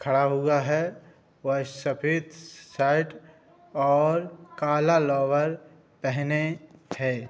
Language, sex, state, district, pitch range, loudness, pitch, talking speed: Hindi, male, Uttar Pradesh, Budaun, 140-160 Hz, -26 LUFS, 150 Hz, 90 wpm